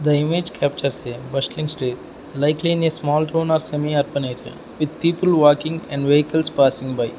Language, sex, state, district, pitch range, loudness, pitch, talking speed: English, male, Arunachal Pradesh, Lower Dibang Valley, 140-160 Hz, -20 LUFS, 150 Hz, 175 wpm